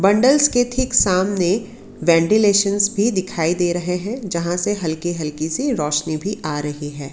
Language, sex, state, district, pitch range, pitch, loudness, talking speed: Hindi, female, Karnataka, Bangalore, 160-205 Hz, 185 Hz, -19 LUFS, 170 wpm